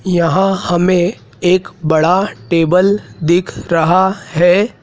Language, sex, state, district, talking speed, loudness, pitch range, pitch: Hindi, male, Madhya Pradesh, Dhar, 100 wpm, -14 LUFS, 170-190 Hz, 175 Hz